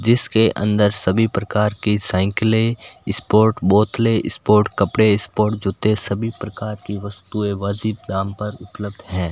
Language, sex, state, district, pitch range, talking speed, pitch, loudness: Hindi, male, Rajasthan, Bikaner, 100-110 Hz, 135 wpm, 105 Hz, -19 LUFS